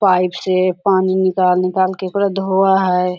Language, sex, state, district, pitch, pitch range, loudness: Hindi, female, Jharkhand, Sahebganj, 185 Hz, 185-190 Hz, -16 LUFS